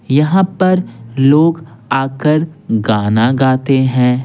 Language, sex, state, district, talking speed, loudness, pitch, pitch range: Hindi, male, Bihar, Patna, 100 wpm, -13 LUFS, 135 Hz, 125-155 Hz